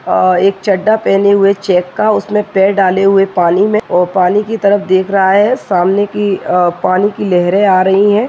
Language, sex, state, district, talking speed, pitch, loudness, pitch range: Hindi, male, Uttar Pradesh, Jyotiba Phule Nagar, 215 wpm, 195 Hz, -11 LUFS, 185-205 Hz